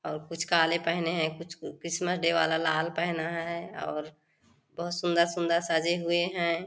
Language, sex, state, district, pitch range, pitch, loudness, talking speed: Hindi, female, Chhattisgarh, Korba, 165-170 Hz, 170 Hz, -29 LUFS, 160 wpm